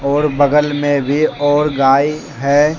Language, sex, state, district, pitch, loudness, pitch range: Hindi, male, Jharkhand, Deoghar, 145 Hz, -14 LUFS, 140-150 Hz